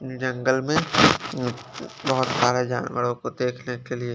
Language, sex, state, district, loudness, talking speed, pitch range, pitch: Hindi, male, Chandigarh, Chandigarh, -23 LUFS, 145 wpm, 125-130 Hz, 125 Hz